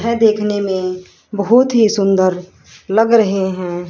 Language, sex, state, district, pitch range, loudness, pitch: Hindi, female, Haryana, Rohtak, 185-225 Hz, -15 LUFS, 200 Hz